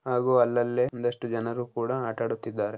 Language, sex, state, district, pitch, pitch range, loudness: Kannada, male, Karnataka, Dharwad, 120 Hz, 115-125 Hz, -27 LUFS